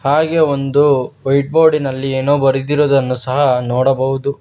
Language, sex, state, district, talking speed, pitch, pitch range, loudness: Kannada, male, Karnataka, Bangalore, 110 wpm, 140 Hz, 135-145 Hz, -14 LUFS